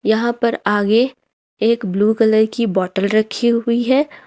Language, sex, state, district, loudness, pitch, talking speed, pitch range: Hindi, female, Jharkhand, Ranchi, -17 LUFS, 225 Hz, 155 wpm, 210-235 Hz